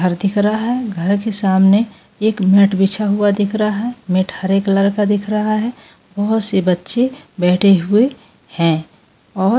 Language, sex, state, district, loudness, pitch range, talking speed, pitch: Hindi, female, Goa, North and South Goa, -16 LUFS, 190-215 Hz, 180 wpm, 205 Hz